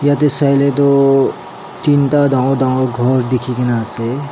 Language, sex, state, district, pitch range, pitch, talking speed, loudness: Nagamese, male, Nagaland, Dimapur, 125-140 Hz, 135 Hz, 140 wpm, -13 LUFS